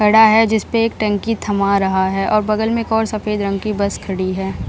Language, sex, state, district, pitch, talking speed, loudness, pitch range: Hindi, female, Bihar, Jahanabad, 210 Hz, 245 wpm, -17 LUFS, 200-220 Hz